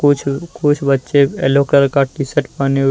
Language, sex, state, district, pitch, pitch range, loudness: Hindi, male, Jharkhand, Deoghar, 140 Hz, 135-145 Hz, -15 LUFS